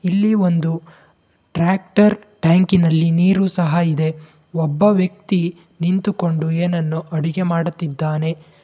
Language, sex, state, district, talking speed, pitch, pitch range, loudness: Kannada, male, Karnataka, Bangalore, 90 wpm, 170 Hz, 160-185 Hz, -18 LUFS